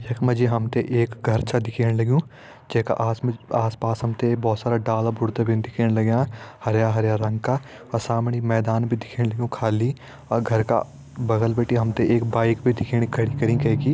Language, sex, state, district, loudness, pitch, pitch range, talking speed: Hindi, male, Uttarakhand, Uttarkashi, -23 LUFS, 115 Hz, 115-120 Hz, 205 wpm